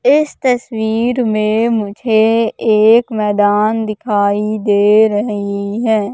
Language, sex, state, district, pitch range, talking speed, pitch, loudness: Hindi, female, Madhya Pradesh, Katni, 210-230 Hz, 100 wpm, 220 Hz, -14 LUFS